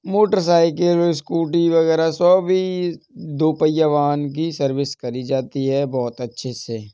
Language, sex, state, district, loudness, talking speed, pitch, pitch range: Hindi, male, Uttar Pradesh, Jalaun, -19 LUFS, 130 wpm, 155 Hz, 135-170 Hz